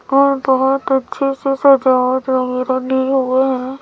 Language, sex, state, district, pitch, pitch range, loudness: Hindi, female, Chhattisgarh, Raipur, 265 Hz, 260-275 Hz, -15 LUFS